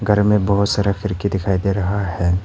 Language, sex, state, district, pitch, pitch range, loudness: Hindi, male, Arunachal Pradesh, Papum Pare, 100 Hz, 95-100 Hz, -18 LUFS